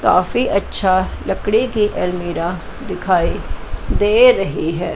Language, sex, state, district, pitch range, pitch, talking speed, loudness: Hindi, female, Chandigarh, Chandigarh, 180-245 Hz, 200 Hz, 110 wpm, -17 LUFS